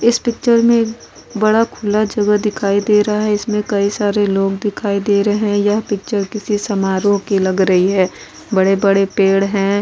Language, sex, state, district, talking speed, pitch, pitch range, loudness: Hindi, female, Goa, North and South Goa, 185 wpm, 205 Hz, 195-215 Hz, -15 LUFS